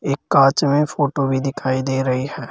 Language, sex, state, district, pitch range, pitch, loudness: Hindi, male, Rajasthan, Jaipur, 135-145 Hz, 135 Hz, -18 LUFS